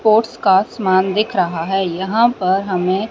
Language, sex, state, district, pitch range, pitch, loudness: Hindi, female, Haryana, Rohtak, 185-215 Hz, 195 Hz, -16 LUFS